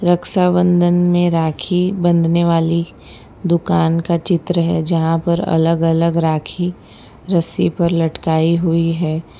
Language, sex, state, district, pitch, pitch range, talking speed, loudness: Hindi, female, Gujarat, Valsad, 170 Hz, 165-175 Hz, 120 wpm, -16 LUFS